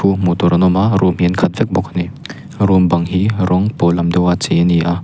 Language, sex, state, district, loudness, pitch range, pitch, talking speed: Mizo, male, Mizoram, Aizawl, -14 LUFS, 85-95 Hz, 90 Hz, 285 wpm